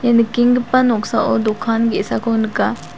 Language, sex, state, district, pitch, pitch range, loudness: Garo, female, Meghalaya, South Garo Hills, 230 Hz, 225-240 Hz, -16 LUFS